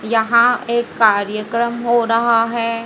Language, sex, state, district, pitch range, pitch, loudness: Hindi, female, Haryana, Jhajjar, 225-235 Hz, 230 Hz, -16 LUFS